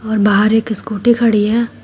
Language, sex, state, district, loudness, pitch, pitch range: Hindi, female, Uttar Pradesh, Shamli, -14 LUFS, 220 Hz, 210-230 Hz